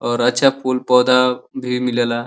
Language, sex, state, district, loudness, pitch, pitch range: Bhojpuri, male, Uttar Pradesh, Deoria, -17 LUFS, 125 Hz, 120-125 Hz